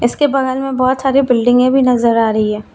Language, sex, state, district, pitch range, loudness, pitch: Hindi, female, Jharkhand, Deoghar, 235-270 Hz, -13 LUFS, 250 Hz